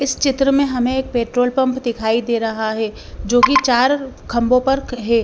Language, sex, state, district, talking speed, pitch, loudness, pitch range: Hindi, female, Bihar, West Champaran, 185 wpm, 250 Hz, -17 LUFS, 235-265 Hz